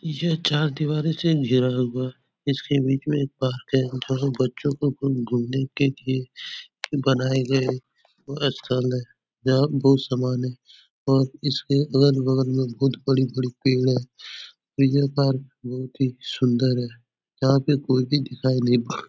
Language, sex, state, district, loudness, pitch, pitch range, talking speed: Hindi, male, Uttar Pradesh, Etah, -23 LUFS, 135 Hz, 130-140 Hz, 165 wpm